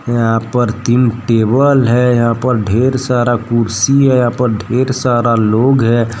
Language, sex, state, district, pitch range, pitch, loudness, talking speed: Hindi, male, Jharkhand, Deoghar, 115-125 Hz, 120 Hz, -13 LUFS, 165 wpm